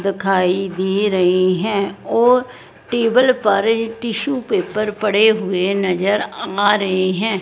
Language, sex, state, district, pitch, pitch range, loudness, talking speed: Hindi, female, Punjab, Fazilka, 205 Hz, 190-225 Hz, -17 LUFS, 120 wpm